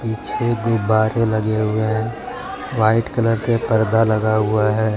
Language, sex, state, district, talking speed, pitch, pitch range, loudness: Hindi, male, Jharkhand, Deoghar, 145 wpm, 110 Hz, 110-115 Hz, -19 LUFS